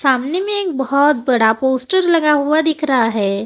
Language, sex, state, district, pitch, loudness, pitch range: Hindi, male, Maharashtra, Gondia, 275 Hz, -15 LUFS, 250-315 Hz